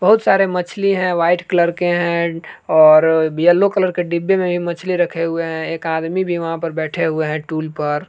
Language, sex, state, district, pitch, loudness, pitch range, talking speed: Hindi, male, Jharkhand, Palamu, 170 Hz, -17 LUFS, 160-180 Hz, 215 wpm